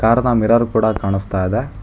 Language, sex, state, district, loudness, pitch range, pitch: Kannada, male, Karnataka, Bangalore, -17 LUFS, 100-115 Hz, 110 Hz